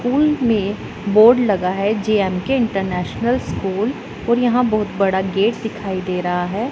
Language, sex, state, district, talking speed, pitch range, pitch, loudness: Hindi, female, Punjab, Pathankot, 150 wpm, 190-235 Hz, 210 Hz, -18 LUFS